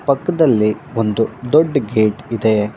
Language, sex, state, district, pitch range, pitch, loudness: Kannada, male, Karnataka, Bangalore, 110-145 Hz, 115 Hz, -16 LUFS